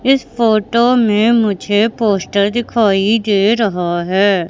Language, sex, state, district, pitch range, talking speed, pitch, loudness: Hindi, female, Madhya Pradesh, Katni, 200-230 Hz, 120 wpm, 215 Hz, -14 LUFS